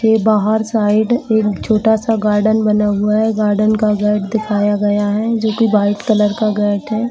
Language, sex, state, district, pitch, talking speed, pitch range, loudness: Hindi, female, Jharkhand, Jamtara, 215 Hz, 175 wpm, 210-220 Hz, -15 LUFS